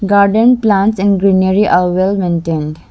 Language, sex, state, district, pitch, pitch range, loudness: English, female, Arunachal Pradesh, Lower Dibang Valley, 195 Hz, 180-205 Hz, -12 LUFS